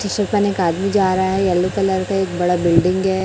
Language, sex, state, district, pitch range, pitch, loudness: Hindi, male, Chhattisgarh, Raipur, 180-195 Hz, 190 Hz, -17 LUFS